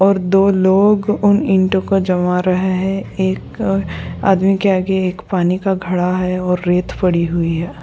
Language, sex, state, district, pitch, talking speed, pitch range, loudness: Hindi, female, Goa, North and South Goa, 190 Hz, 170 wpm, 180-195 Hz, -16 LUFS